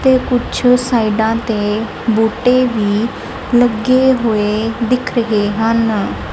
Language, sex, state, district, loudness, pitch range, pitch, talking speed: Punjabi, female, Punjab, Kapurthala, -14 LUFS, 215-250 Hz, 225 Hz, 105 wpm